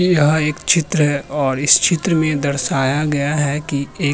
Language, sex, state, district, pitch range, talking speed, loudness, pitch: Hindi, male, Uttar Pradesh, Hamirpur, 140-160 Hz, 205 wpm, -16 LUFS, 150 Hz